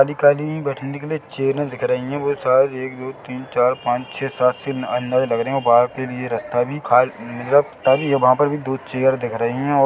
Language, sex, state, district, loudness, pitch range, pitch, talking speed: Hindi, male, Chhattisgarh, Bilaspur, -19 LUFS, 125-140 Hz, 130 Hz, 260 wpm